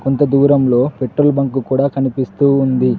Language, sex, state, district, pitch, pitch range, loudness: Telugu, male, Telangana, Mahabubabad, 135 Hz, 130-140 Hz, -14 LUFS